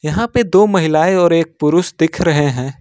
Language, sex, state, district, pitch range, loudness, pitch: Hindi, male, Jharkhand, Ranchi, 155-185 Hz, -14 LUFS, 165 Hz